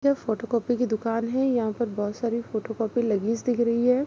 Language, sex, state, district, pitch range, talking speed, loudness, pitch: Hindi, female, Chhattisgarh, Kabirdham, 225-245 Hz, 235 wpm, -26 LUFS, 235 Hz